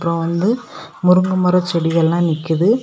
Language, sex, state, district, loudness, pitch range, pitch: Tamil, female, Tamil Nadu, Kanyakumari, -16 LUFS, 165-185 Hz, 175 Hz